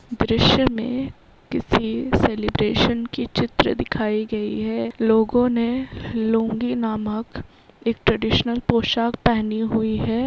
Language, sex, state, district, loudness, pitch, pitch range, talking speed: Hindi, female, Andhra Pradesh, Krishna, -21 LUFS, 225 Hz, 220-240 Hz, 110 wpm